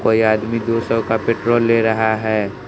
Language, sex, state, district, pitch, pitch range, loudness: Hindi, male, Bihar, West Champaran, 115 Hz, 110-115 Hz, -17 LUFS